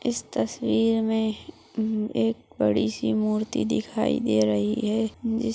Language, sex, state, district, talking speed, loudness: Hindi, female, Bihar, Jahanabad, 150 wpm, -25 LUFS